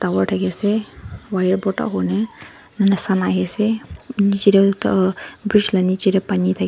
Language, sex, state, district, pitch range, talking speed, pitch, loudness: Nagamese, female, Nagaland, Dimapur, 175-205 Hz, 160 wpm, 195 Hz, -19 LUFS